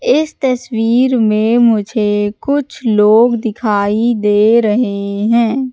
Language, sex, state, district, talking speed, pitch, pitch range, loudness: Hindi, female, Madhya Pradesh, Katni, 105 wpm, 225 Hz, 210-245 Hz, -13 LUFS